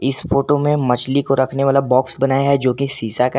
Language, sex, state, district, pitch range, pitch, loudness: Hindi, male, Jharkhand, Garhwa, 130-140 Hz, 135 Hz, -17 LUFS